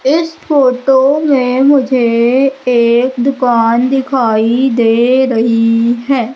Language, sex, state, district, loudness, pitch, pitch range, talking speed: Hindi, female, Madhya Pradesh, Umaria, -11 LUFS, 255 Hz, 235-270 Hz, 95 wpm